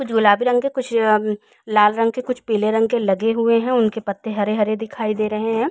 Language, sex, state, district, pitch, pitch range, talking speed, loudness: Hindi, female, Uttar Pradesh, Jalaun, 225 Hz, 215-230 Hz, 250 wpm, -19 LUFS